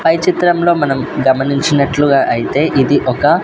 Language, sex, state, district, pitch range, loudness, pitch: Telugu, male, Andhra Pradesh, Sri Satya Sai, 135-170 Hz, -13 LUFS, 145 Hz